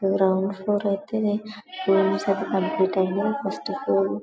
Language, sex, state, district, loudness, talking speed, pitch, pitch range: Telugu, male, Telangana, Karimnagar, -24 LUFS, 115 wpm, 195 Hz, 190-205 Hz